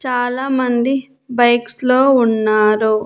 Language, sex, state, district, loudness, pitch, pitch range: Telugu, female, Andhra Pradesh, Annamaya, -15 LUFS, 245 Hz, 225-260 Hz